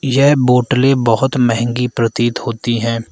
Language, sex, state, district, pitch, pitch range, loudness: Hindi, male, Arunachal Pradesh, Lower Dibang Valley, 120 Hz, 115-130 Hz, -14 LUFS